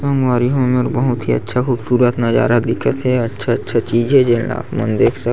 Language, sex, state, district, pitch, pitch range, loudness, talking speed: Chhattisgarhi, male, Chhattisgarh, Sarguja, 120 Hz, 115-125 Hz, -16 LUFS, 200 wpm